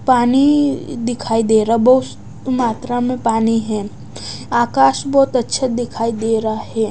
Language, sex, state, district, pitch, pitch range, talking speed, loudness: Hindi, female, Odisha, Nuapada, 230 Hz, 220-255 Hz, 140 wpm, -16 LUFS